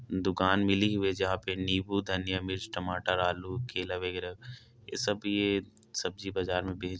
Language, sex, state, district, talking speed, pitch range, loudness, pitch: Hindi, male, Chhattisgarh, Korba, 165 wpm, 90-100 Hz, -31 LUFS, 95 Hz